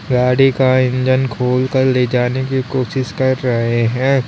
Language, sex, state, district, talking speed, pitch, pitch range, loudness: Hindi, male, Uttar Pradesh, Lalitpur, 155 wpm, 130 Hz, 125-130 Hz, -15 LUFS